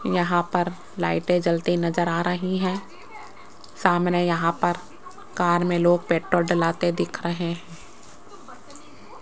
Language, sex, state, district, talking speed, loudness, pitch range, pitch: Hindi, female, Rajasthan, Jaipur, 125 wpm, -23 LUFS, 170-180 Hz, 175 Hz